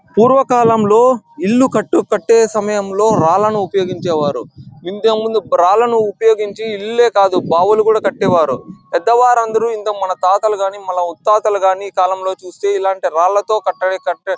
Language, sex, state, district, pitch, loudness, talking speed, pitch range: Telugu, male, Andhra Pradesh, Chittoor, 205 Hz, -14 LUFS, 130 wpm, 190-220 Hz